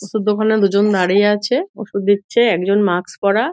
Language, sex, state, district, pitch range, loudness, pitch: Bengali, female, West Bengal, Dakshin Dinajpur, 200-220 Hz, -16 LUFS, 205 Hz